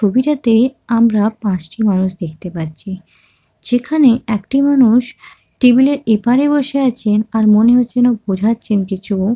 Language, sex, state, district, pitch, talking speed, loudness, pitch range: Bengali, female, West Bengal, Kolkata, 220 Hz, 120 wpm, -14 LUFS, 195-250 Hz